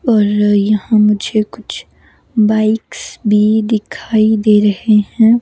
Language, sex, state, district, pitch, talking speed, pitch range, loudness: Hindi, female, Himachal Pradesh, Shimla, 215 Hz, 110 wpm, 210-220 Hz, -13 LUFS